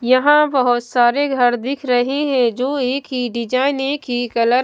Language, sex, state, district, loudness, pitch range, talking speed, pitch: Hindi, female, Himachal Pradesh, Shimla, -17 LUFS, 245-275 Hz, 195 wpm, 255 Hz